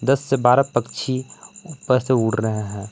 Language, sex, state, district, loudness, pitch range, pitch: Hindi, male, Jharkhand, Palamu, -20 LUFS, 110-135 Hz, 130 Hz